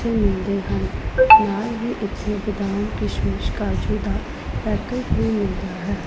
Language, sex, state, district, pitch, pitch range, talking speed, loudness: Punjabi, female, Punjab, Pathankot, 210 Hz, 200-225 Hz, 140 wpm, -21 LUFS